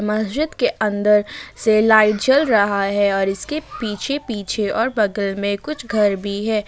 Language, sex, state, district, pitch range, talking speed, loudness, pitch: Hindi, female, Jharkhand, Ranchi, 200-230 Hz, 180 wpm, -18 LUFS, 210 Hz